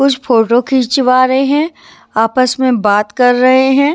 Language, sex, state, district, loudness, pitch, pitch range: Hindi, female, Maharashtra, Washim, -11 LUFS, 255 Hz, 245-270 Hz